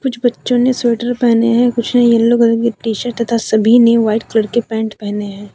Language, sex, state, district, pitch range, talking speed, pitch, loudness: Hindi, female, Jharkhand, Deoghar, 220-240 Hz, 235 wpm, 235 Hz, -14 LUFS